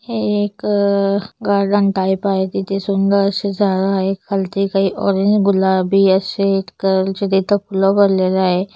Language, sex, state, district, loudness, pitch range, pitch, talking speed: Marathi, female, Maharashtra, Chandrapur, -16 LUFS, 190-200 Hz, 195 Hz, 145 wpm